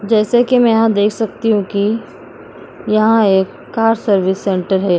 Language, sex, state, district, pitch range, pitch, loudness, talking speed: Hindi, female, Uttar Pradesh, Jyotiba Phule Nagar, 195-225 Hz, 215 Hz, -14 LUFS, 170 wpm